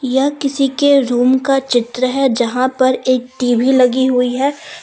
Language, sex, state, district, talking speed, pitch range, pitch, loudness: Hindi, female, Jharkhand, Deoghar, 175 wpm, 250-275 Hz, 260 Hz, -14 LUFS